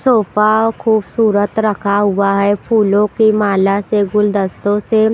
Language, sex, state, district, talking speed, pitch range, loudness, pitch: Hindi, female, Punjab, Pathankot, 140 wpm, 205-220 Hz, -14 LUFS, 210 Hz